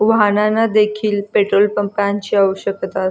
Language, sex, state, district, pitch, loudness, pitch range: Marathi, female, Maharashtra, Solapur, 205 Hz, -16 LUFS, 200-210 Hz